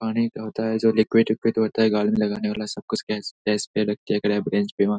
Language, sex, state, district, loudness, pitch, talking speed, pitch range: Hindi, male, Bihar, Saharsa, -23 LUFS, 105 Hz, 190 wpm, 105-110 Hz